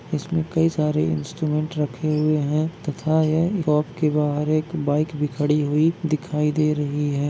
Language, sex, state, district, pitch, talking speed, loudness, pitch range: Hindi, male, Chhattisgarh, Bastar, 150 Hz, 155 wpm, -22 LUFS, 150-155 Hz